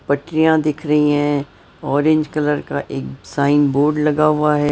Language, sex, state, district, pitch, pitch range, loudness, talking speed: Hindi, female, Maharashtra, Mumbai Suburban, 150 Hz, 145-150 Hz, -17 LUFS, 165 wpm